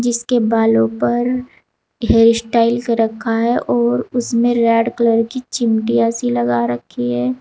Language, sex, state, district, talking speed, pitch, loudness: Hindi, female, Uttar Pradesh, Saharanpur, 145 wpm, 230 Hz, -16 LUFS